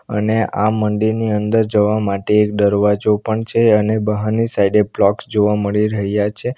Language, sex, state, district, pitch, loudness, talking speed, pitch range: Gujarati, male, Gujarat, Valsad, 105 Hz, -16 LUFS, 165 wpm, 105-110 Hz